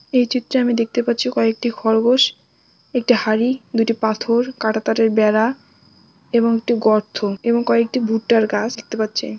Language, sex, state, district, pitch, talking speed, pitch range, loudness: Bengali, female, West Bengal, Dakshin Dinajpur, 230 Hz, 145 wpm, 220-245 Hz, -18 LUFS